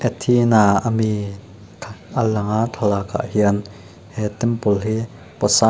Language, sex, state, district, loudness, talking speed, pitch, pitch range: Mizo, male, Mizoram, Aizawl, -19 LUFS, 135 wpm, 105 Hz, 100-115 Hz